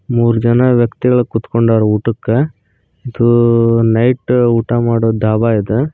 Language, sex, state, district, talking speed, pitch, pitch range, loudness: Kannada, male, Karnataka, Koppal, 110 wpm, 115 Hz, 115-120 Hz, -13 LUFS